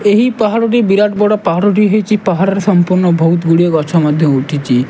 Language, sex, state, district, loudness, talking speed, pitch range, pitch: Odia, male, Odisha, Malkangiri, -12 LUFS, 195 wpm, 165-210 Hz, 190 Hz